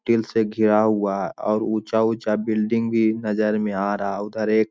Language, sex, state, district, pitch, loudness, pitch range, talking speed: Hindi, male, Bihar, Jamui, 110 Hz, -22 LUFS, 105-110 Hz, 205 wpm